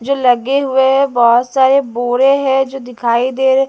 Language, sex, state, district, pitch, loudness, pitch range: Hindi, female, Delhi, New Delhi, 265 Hz, -13 LUFS, 245-270 Hz